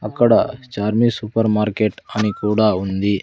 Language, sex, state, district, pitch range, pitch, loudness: Telugu, male, Andhra Pradesh, Sri Satya Sai, 105-115 Hz, 105 Hz, -18 LUFS